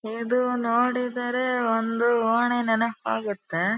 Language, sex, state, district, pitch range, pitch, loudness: Kannada, female, Karnataka, Dharwad, 225-245 Hz, 235 Hz, -24 LUFS